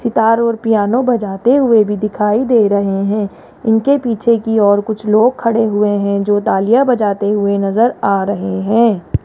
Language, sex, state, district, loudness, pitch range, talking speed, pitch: Hindi, male, Rajasthan, Jaipur, -14 LUFS, 200-230 Hz, 175 wpm, 215 Hz